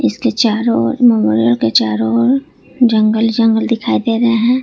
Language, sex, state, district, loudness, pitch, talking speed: Hindi, female, Jharkhand, Ranchi, -13 LUFS, 225 Hz, 130 wpm